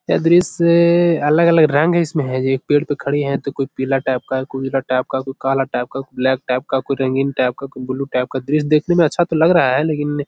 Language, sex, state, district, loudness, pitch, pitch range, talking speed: Hindi, male, Bihar, Jahanabad, -17 LUFS, 140 Hz, 130-155 Hz, 270 wpm